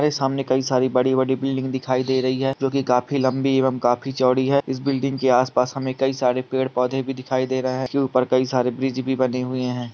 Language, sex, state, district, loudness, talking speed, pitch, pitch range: Hindi, male, Andhra Pradesh, Krishna, -21 LUFS, 235 wpm, 130 Hz, 130-135 Hz